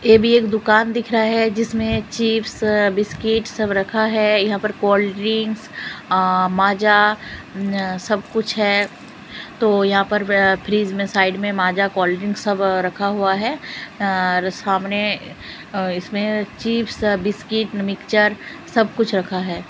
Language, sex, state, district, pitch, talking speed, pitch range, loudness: Hindi, female, Delhi, New Delhi, 205 Hz, 150 wpm, 195-220 Hz, -19 LUFS